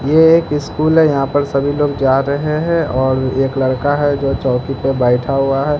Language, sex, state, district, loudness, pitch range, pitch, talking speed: Hindi, male, Bihar, Katihar, -15 LUFS, 135-145 Hz, 140 Hz, 215 wpm